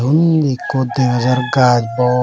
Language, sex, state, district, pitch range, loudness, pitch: Chakma, male, Tripura, West Tripura, 125-135 Hz, -15 LUFS, 125 Hz